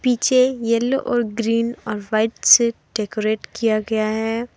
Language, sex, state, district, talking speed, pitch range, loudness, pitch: Hindi, female, Jharkhand, Deoghar, 145 wpm, 215-240 Hz, -19 LUFS, 230 Hz